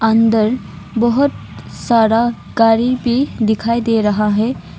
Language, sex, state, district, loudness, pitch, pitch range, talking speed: Hindi, female, Arunachal Pradesh, Longding, -15 LUFS, 225 Hz, 220-235 Hz, 115 wpm